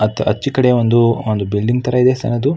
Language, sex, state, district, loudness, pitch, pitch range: Kannada, male, Karnataka, Mysore, -15 LUFS, 120 Hz, 110-125 Hz